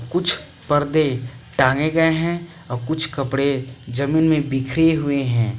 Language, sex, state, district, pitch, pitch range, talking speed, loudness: Hindi, male, Jharkhand, Palamu, 140 Hz, 130-160 Hz, 140 wpm, -20 LUFS